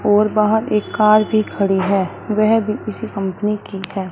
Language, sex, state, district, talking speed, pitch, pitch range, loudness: Hindi, female, Punjab, Fazilka, 190 wpm, 210 Hz, 195-215 Hz, -17 LUFS